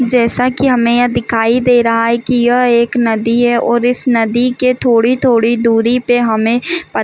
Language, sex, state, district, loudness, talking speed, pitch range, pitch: Hindi, female, Chhattisgarh, Rajnandgaon, -12 LUFS, 195 wpm, 230-250 Hz, 240 Hz